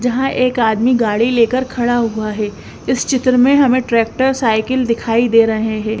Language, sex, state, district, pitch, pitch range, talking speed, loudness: Hindi, female, Bihar, West Champaran, 240 Hz, 225-255 Hz, 180 wpm, -15 LUFS